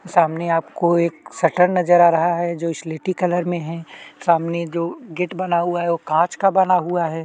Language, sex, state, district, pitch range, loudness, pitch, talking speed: Hindi, male, Chhattisgarh, Kabirdham, 165-180 Hz, -19 LUFS, 170 Hz, 155 wpm